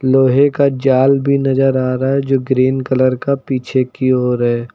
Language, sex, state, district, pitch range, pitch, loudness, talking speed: Hindi, male, Uttar Pradesh, Lucknow, 130-135 Hz, 130 Hz, -14 LUFS, 200 wpm